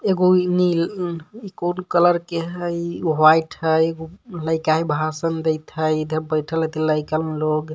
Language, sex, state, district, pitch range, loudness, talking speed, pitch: Magahi, male, Jharkhand, Palamu, 155-175 Hz, -20 LUFS, 140 wpm, 160 Hz